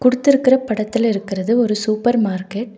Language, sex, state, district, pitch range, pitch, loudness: Tamil, female, Tamil Nadu, Nilgiris, 210-250 Hz, 230 Hz, -17 LUFS